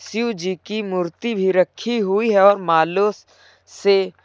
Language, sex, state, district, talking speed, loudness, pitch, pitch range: Hindi, male, Uttar Pradesh, Lucknow, 140 wpm, -19 LUFS, 200 Hz, 185-215 Hz